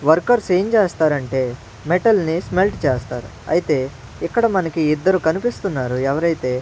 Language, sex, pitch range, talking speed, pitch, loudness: Telugu, male, 130-190 Hz, 120 wpm, 160 Hz, -19 LUFS